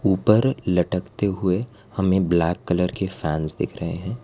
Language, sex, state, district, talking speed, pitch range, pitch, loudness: Hindi, female, Gujarat, Valsad, 155 wpm, 90-100 Hz, 95 Hz, -23 LUFS